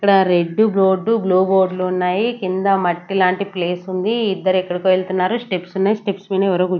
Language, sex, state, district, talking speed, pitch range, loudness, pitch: Telugu, female, Andhra Pradesh, Sri Satya Sai, 195 wpm, 185-195 Hz, -18 LUFS, 190 Hz